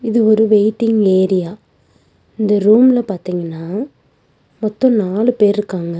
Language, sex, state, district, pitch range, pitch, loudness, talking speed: Tamil, female, Tamil Nadu, Nilgiris, 190-225 Hz, 210 Hz, -15 LUFS, 110 wpm